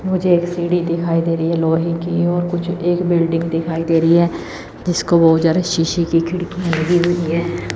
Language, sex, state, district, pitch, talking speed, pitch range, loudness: Hindi, female, Chandigarh, Chandigarh, 170 Hz, 200 wpm, 165-175 Hz, -17 LUFS